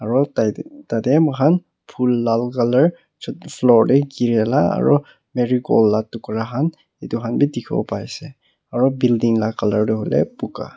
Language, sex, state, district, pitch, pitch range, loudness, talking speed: Nagamese, male, Nagaland, Kohima, 125 Hz, 115-145 Hz, -19 LUFS, 180 wpm